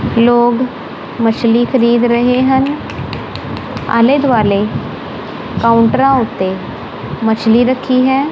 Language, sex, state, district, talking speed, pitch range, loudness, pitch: Punjabi, female, Punjab, Kapurthala, 85 wpm, 230-260 Hz, -13 LUFS, 240 Hz